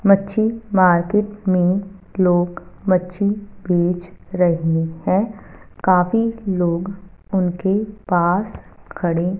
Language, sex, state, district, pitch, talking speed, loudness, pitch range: Hindi, female, Punjab, Fazilka, 185 Hz, 85 wpm, -19 LUFS, 175-200 Hz